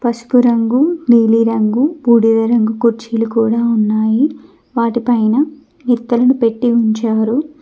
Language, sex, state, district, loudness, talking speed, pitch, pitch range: Telugu, female, Telangana, Mahabubabad, -14 LUFS, 95 wpm, 235 Hz, 225-250 Hz